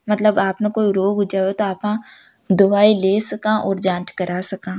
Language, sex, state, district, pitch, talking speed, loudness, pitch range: Marwari, female, Rajasthan, Nagaur, 200 Hz, 200 wpm, -18 LUFS, 190-210 Hz